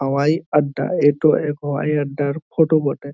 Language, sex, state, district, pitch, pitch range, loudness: Bengali, male, West Bengal, Jhargram, 145 Hz, 140-155 Hz, -19 LUFS